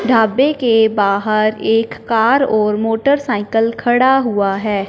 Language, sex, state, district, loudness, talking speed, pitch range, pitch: Hindi, male, Punjab, Fazilka, -15 LUFS, 125 wpm, 215-245 Hz, 225 Hz